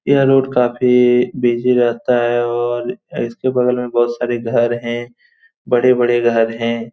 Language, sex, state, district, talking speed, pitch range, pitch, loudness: Hindi, male, Bihar, Saran, 145 wpm, 120-125 Hz, 120 Hz, -16 LUFS